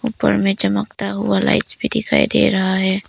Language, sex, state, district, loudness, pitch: Hindi, female, Arunachal Pradesh, Papum Pare, -17 LUFS, 100 Hz